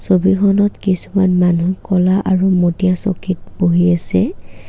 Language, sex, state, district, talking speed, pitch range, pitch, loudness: Assamese, female, Assam, Kamrup Metropolitan, 115 wpm, 175-190 Hz, 185 Hz, -15 LUFS